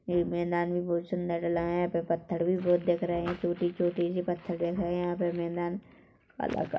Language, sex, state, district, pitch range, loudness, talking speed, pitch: Hindi, female, Chhattisgarh, Korba, 170-175 Hz, -30 LUFS, 245 wpm, 175 Hz